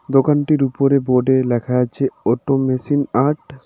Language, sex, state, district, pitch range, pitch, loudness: Bengali, male, West Bengal, Darjeeling, 130-140 Hz, 135 Hz, -17 LUFS